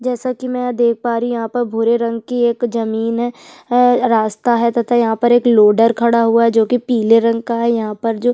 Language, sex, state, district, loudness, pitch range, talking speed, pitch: Hindi, female, Chhattisgarh, Sukma, -15 LUFS, 230-245 Hz, 260 wpm, 235 Hz